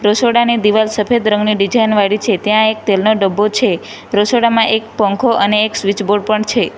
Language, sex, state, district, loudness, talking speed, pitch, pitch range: Gujarati, female, Gujarat, Valsad, -13 LUFS, 175 wpm, 215 Hz, 205-225 Hz